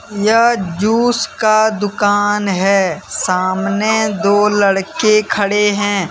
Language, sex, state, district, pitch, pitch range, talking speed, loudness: Hindi, male, Jharkhand, Deoghar, 205 Hz, 200-215 Hz, 100 wpm, -14 LUFS